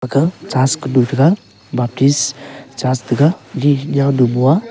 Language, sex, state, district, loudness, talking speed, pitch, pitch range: Wancho, male, Arunachal Pradesh, Longding, -15 LUFS, 140 wpm, 135 Hz, 130-145 Hz